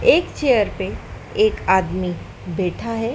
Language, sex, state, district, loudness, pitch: Hindi, female, Madhya Pradesh, Dhar, -20 LUFS, 190 Hz